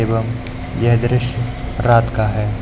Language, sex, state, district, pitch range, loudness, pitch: Hindi, male, Uttar Pradesh, Lucknow, 115-120 Hz, -17 LUFS, 120 Hz